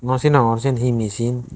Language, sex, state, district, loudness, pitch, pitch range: Chakma, male, Tripura, Dhalai, -18 LUFS, 125 Hz, 115-130 Hz